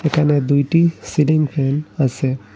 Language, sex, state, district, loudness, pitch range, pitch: Bengali, male, Assam, Hailakandi, -17 LUFS, 135-155 Hz, 145 Hz